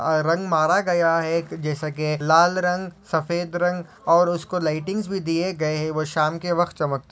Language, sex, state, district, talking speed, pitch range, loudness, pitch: Hindi, male, Maharashtra, Solapur, 195 wpm, 155-180 Hz, -22 LUFS, 165 Hz